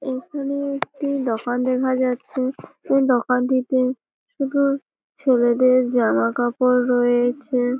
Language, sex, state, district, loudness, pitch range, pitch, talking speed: Bengali, female, West Bengal, Malda, -20 LUFS, 245-275 Hz, 255 Hz, 75 wpm